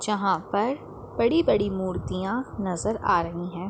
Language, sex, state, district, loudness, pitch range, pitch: Hindi, female, Uttar Pradesh, Ghazipur, -26 LUFS, 185-210 Hz, 195 Hz